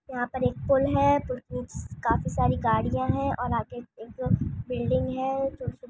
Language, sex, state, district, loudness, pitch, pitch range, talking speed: Hindi, female, Andhra Pradesh, Anantapur, -27 LUFS, 260 Hz, 245-270 Hz, 175 wpm